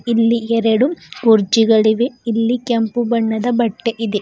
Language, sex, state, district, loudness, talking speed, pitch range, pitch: Kannada, female, Karnataka, Bidar, -16 LUFS, 115 wpm, 225-240 Hz, 230 Hz